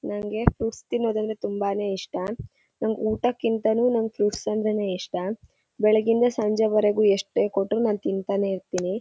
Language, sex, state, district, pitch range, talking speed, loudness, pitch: Kannada, female, Karnataka, Shimoga, 200-225 Hz, 140 wpm, -24 LUFS, 215 Hz